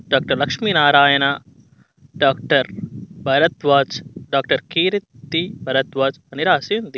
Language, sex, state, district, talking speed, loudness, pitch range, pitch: Telugu, male, Telangana, Mahabubabad, 85 wpm, -18 LUFS, 135-175 Hz, 145 Hz